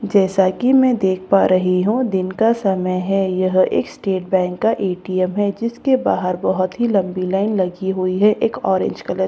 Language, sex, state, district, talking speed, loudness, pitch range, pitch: Hindi, female, Bihar, Katihar, 215 wpm, -18 LUFS, 185-215 Hz, 190 Hz